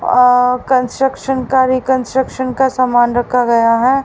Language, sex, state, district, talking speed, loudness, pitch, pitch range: Hindi, female, Haryana, Rohtak, 135 wpm, -14 LUFS, 255 Hz, 245-260 Hz